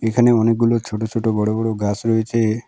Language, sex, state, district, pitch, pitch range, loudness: Bengali, male, West Bengal, Alipurduar, 110 Hz, 110-115 Hz, -18 LUFS